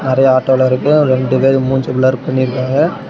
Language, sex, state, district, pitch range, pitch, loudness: Tamil, male, Tamil Nadu, Namakkal, 130-135 Hz, 130 Hz, -13 LUFS